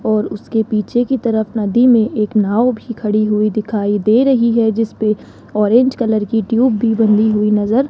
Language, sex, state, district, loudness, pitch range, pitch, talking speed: Hindi, female, Rajasthan, Jaipur, -15 LUFS, 210-235 Hz, 220 Hz, 195 wpm